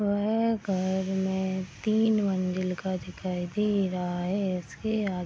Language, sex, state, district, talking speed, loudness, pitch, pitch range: Hindi, female, Bihar, Gopalganj, 150 wpm, -28 LUFS, 190 Hz, 185-210 Hz